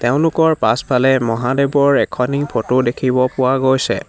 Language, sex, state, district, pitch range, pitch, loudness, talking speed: Assamese, male, Assam, Hailakandi, 125-140 Hz, 130 Hz, -16 LUFS, 115 wpm